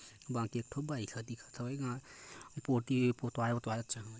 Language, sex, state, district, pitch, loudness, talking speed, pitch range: Chhattisgarhi, male, Chhattisgarh, Korba, 120 Hz, -38 LUFS, 145 wpm, 115-130 Hz